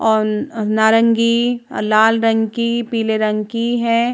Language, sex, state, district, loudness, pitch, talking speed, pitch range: Hindi, female, Uttar Pradesh, Jalaun, -16 LUFS, 225 Hz, 100 wpm, 220-235 Hz